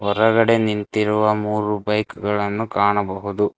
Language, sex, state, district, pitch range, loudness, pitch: Kannada, male, Karnataka, Bangalore, 100-105 Hz, -20 LUFS, 105 Hz